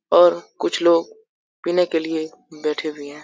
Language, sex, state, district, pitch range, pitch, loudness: Hindi, male, Bihar, Saran, 155-175 Hz, 165 Hz, -20 LUFS